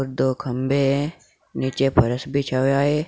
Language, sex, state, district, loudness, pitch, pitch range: Hindi, male, Uttar Pradesh, Saharanpur, -22 LUFS, 135 Hz, 130-140 Hz